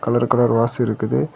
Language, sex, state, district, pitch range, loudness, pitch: Tamil, male, Tamil Nadu, Kanyakumari, 115-120 Hz, -18 LUFS, 120 Hz